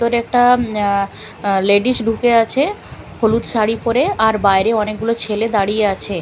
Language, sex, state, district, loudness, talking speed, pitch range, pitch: Bengali, female, Bihar, Katihar, -16 LUFS, 155 wpm, 205-235 Hz, 220 Hz